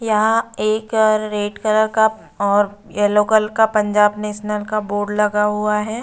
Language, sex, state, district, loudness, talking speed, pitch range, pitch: Hindi, female, Uttar Pradesh, Budaun, -18 LUFS, 160 wpm, 210-215 Hz, 210 Hz